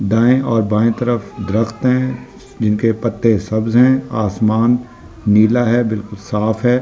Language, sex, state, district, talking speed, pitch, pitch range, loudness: Hindi, male, Delhi, New Delhi, 140 wpm, 115 Hz, 110-120 Hz, -16 LUFS